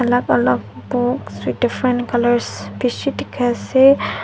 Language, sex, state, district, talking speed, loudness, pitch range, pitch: Nagamese, female, Nagaland, Dimapur, 125 wpm, -18 LUFS, 240-255 Hz, 245 Hz